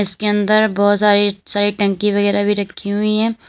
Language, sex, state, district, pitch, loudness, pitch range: Hindi, female, Uttar Pradesh, Lalitpur, 205 Hz, -16 LUFS, 205-210 Hz